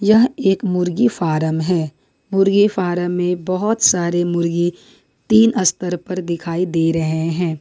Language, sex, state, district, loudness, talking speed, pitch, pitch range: Hindi, female, Jharkhand, Ranchi, -17 LUFS, 140 wpm, 180 Hz, 170-195 Hz